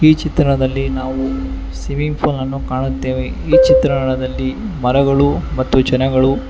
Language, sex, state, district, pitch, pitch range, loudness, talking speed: Kannada, male, Karnataka, Bangalore, 135 Hz, 130-140 Hz, -16 LUFS, 100 wpm